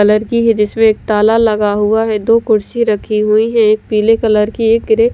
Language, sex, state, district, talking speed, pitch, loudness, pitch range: Hindi, female, Delhi, New Delhi, 245 wpm, 220 Hz, -12 LUFS, 210-225 Hz